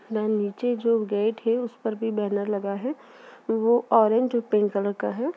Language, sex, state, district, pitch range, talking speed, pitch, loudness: Hindi, female, Uttar Pradesh, Jalaun, 210-240 Hz, 190 wpm, 225 Hz, -25 LUFS